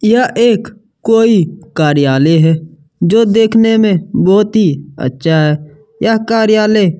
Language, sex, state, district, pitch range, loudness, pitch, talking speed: Hindi, male, Chhattisgarh, Kabirdham, 160-225 Hz, -11 LUFS, 200 Hz, 120 wpm